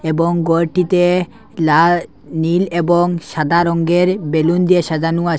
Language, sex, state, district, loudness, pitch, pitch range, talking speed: Bengali, male, Assam, Hailakandi, -15 LUFS, 170 Hz, 165-175 Hz, 120 wpm